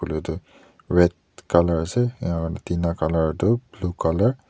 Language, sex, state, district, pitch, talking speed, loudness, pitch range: Nagamese, male, Nagaland, Dimapur, 85 Hz, 135 wpm, -23 LUFS, 80-100 Hz